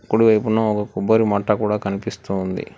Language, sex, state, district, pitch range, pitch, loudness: Telugu, male, Telangana, Hyderabad, 100-110 Hz, 105 Hz, -19 LUFS